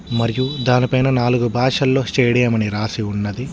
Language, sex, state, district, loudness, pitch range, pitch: Telugu, male, Telangana, Hyderabad, -18 LUFS, 115-130 Hz, 125 Hz